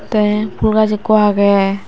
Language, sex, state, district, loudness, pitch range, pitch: Chakma, female, Tripura, West Tripura, -14 LUFS, 200-215 Hz, 210 Hz